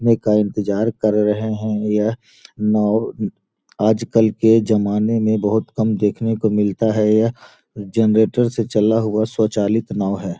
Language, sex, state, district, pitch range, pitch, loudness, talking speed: Hindi, male, Bihar, Gopalganj, 105-110 Hz, 110 Hz, -18 LUFS, 150 wpm